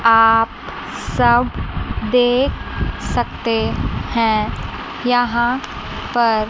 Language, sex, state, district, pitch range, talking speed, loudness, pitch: Hindi, female, Chandigarh, Chandigarh, 225-245 Hz, 65 wpm, -18 LUFS, 235 Hz